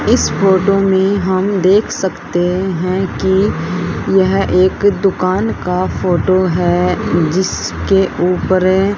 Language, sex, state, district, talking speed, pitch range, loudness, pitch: Hindi, female, Haryana, Rohtak, 105 wpm, 180-195 Hz, -14 LUFS, 185 Hz